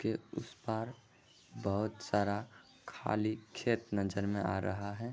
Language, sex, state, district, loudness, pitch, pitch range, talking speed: Magahi, male, Bihar, Jahanabad, -37 LUFS, 105 Hz, 100-115 Hz, 140 wpm